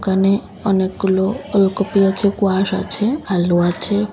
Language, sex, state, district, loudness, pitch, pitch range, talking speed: Bengali, female, Assam, Hailakandi, -17 LUFS, 195 Hz, 190-205 Hz, 115 wpm